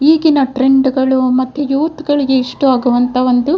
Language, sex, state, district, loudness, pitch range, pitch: Kannada, female, Karnataka, Dakshina Kannada, -13 LUFS, 255-290 Hz, 265 Hz